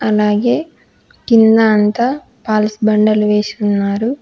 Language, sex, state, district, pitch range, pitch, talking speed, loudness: Telugu, female, Telangana, Hyderabad, 210-235 Hz, 215 Hz, 100 wpm, -14 LUFS